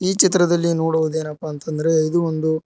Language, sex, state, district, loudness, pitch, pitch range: Kannada, male, Karnataka, Koppal, -19 LUFS, 160 Hz, 155-170 Hz